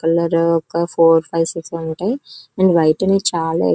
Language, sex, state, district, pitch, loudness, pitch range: Telugu, female, Andhra Pradesh, Chittoor, 165 Hz, -17 LUFS, 165-175 Hz